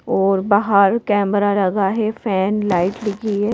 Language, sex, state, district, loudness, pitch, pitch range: Hindi, female, Madhya Pradesh, Bhopal, -17 LUFS, 205 Hz, 195-210 Hz